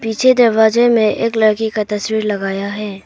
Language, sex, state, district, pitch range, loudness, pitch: Hindi, female, Arunachal Pradesh, Papum Pare, 210-225 Hz, -15 LUFS, 220 Hz